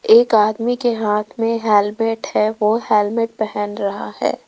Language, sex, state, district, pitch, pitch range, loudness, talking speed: Hindi, female, Rajasthan, Jaipur, 220 Hz, 210-230 Hz, -18 LUFS, 160 wpm